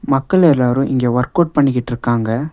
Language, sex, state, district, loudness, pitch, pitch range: Tamil, male, Tamil Nadu, Nilgiris, -15 LUFS, 130 Hz, 120-145 Hz